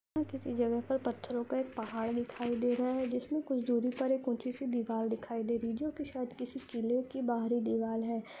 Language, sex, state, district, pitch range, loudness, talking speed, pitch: Hindi, female, Andhra Pradesh, Anantapur, 235-260 Hz, -35 LUFS, 230 wpm, 245 Hz